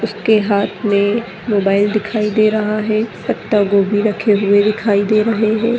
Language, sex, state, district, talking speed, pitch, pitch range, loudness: Hindi, female, Rajasthan, Nagaur, 165 wpm, 210 Hz, 205-215 Hz, -15 LUFS